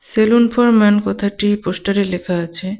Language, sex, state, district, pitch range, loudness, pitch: Bengali, female, West Bengal, Cooch Behar, 185-220 Hz, -15 LUFS, 200 Hz